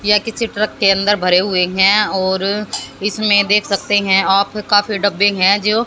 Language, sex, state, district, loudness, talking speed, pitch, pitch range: Hindi, female, Haryana, Jhajjar, -14 LUFS, 185 wpm, 205 Hz, 195-210 Hz